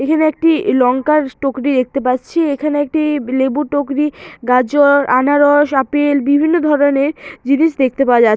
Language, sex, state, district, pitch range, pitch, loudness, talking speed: Bengali, female, West Bengal, Malda, 265-300 Hz, 285 Hz, -14 LUFS, 135 wpm